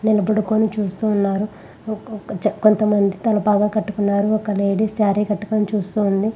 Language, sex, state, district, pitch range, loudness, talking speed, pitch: Telugu, female, Andhra Pradesh, Visakhapatnam, 205-215 Hz, -19 LUFS, 150 wpm, 210 Hz